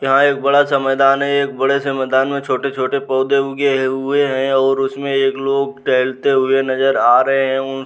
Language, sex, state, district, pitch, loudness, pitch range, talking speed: Hindi, male, Uttar Pradesh, Muzaffarnagar, 135 Hz, -16 LUFS, 135-140 Hz, 215 wpm